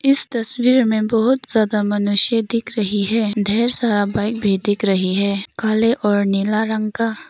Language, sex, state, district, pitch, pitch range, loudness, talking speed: Hindi, female, Arunachal Pradesh, Papum Pare, 215 Hz, 205-230 Hz, -17 LUFS, 175 wpm